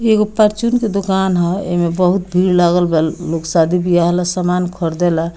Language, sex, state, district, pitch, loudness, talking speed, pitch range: Bhojpuri, female, Bihar, Muzaffarpur, 180 Hz, -15 LUFS, 180 wpm, 170-190 Hz